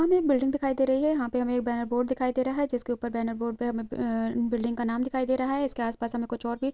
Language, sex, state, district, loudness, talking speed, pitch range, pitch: Hindi, female, Uttarakhand, Tehri Garhwal, -28 LUFS, 345 wpm, 235-265 Hz, 245 Hz